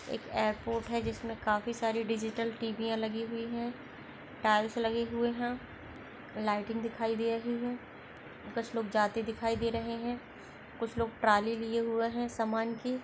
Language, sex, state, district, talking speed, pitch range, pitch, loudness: Hindi, female, Goa, North and South Goa, 165 wpm, 225-235 Hz, 230 Hz, -33 LUFS